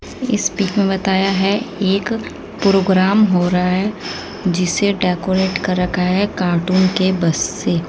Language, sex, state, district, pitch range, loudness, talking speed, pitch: Hindi, female, Haryana, Jhajjar, 180-200 Hz, -17 LUFS, 145 wpm, 190 Hz